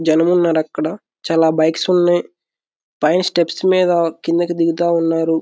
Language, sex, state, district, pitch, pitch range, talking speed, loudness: Telugu, male, Andhra Pradesh, Guntur, 170 Hz, 165-175 Hz, 120 wpm, -16 LUFS